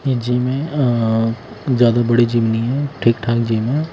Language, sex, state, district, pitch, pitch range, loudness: Hindi, male, Himachal Pradesh, Shimla, 120 Hz, 115-135 Hz, -17 LUFS